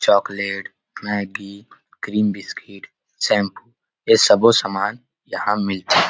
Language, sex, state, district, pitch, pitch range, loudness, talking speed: Chhattisgarhi, male, Chhattisgarh, Rajnandgaon, 100 Hz, 100-105 Hz, -19 LUFS, 100 wpm